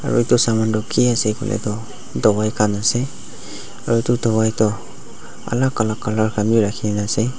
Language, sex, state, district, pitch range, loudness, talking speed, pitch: Nagamese, male, Nagaland, Dimapur, 105-115 Hz, -19 LUFS, 180 wpm, 110 Hz